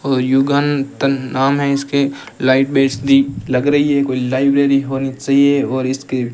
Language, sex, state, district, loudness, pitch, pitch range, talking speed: Hindi, male, Rajasthan, Bikaner, -15 LUFS, 135 Hz, 130-140 Hz, 135 wpm